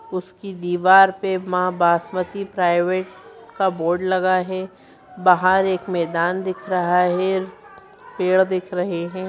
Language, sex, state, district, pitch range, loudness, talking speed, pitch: Hindi, female, Bihar, Jahanabad, 180-190 Hz, -20 LUFS, 135 wpm, 185 Hz